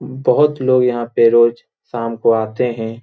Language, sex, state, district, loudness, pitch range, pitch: Hindi, male, Bihar, Jamui, -15 LUFS, 115-125 Hz, 120 Hz